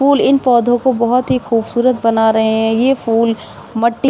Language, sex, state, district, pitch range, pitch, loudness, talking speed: Hindi, female, Uttar Pradesh, Budaun, 225-255 Hz, 235 Hz, -14 LUFS, 205 wpm